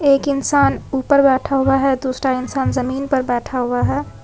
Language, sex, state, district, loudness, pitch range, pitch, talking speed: Hindi, female, Jharkhand, Ranchi, -17 LUFS, 260-275 Hz, 270 Hz, 185 wpm